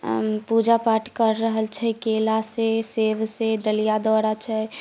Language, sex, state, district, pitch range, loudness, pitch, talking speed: Maithili, female, Bihar, Samastipur, 220-225 Hz, -22 LUFS, 220 Hz, 150 wpm